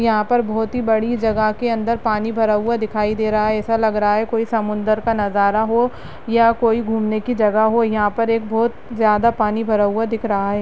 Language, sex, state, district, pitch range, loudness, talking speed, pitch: Hindi, female, Chhattisgarh, Rajnandgaon, 215-230 Hz, -18 LUFS, 230 wpm, 220 Hz